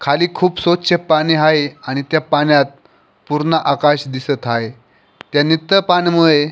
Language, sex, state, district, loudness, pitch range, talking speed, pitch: Marathi, male, Maharashtra, Pune, -15 LUFS, 140-165 Hz, 145 wpm, 150 Hz